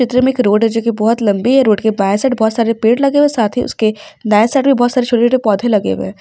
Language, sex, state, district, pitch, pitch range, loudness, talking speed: Hindi, female, Uttar Pradesh, Ghazipur, 230 Hz, 215-250 Hz, -13 LUFS, 310 wpm